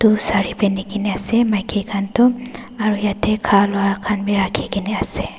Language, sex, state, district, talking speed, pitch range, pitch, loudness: Nagamese, female, Nagaland, Dimapur, 145 wpm, 200-215 Hz, 205 Hz, -19 LUFS